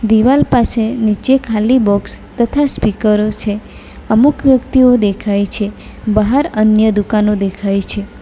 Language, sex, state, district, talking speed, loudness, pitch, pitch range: Gujarati, female, Gujarat, Valsad, 125 wpm, -13 LUFS, 215 Hz, 205-245 Hz